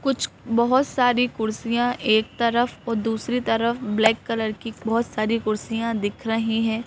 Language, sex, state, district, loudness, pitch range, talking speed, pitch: Hindi, female, Madhya Pradesh, Bhopal, -23 LUFS, 220-240 Hz, 155 wpm, 230 Hz